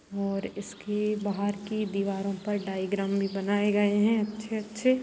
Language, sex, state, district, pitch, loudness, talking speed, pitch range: Hindi, female, Bihar, Sitamarhi, 205 Hz, -29 LUFS, 145 wpm, 200-210 Hz